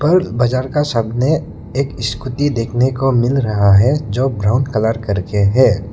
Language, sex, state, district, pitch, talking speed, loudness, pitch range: Hindi, male, Arunachal Pradesh, Lower Dibang Valley, 120 Hz, 160 wpm, -16 LUFS, 110-135 Hz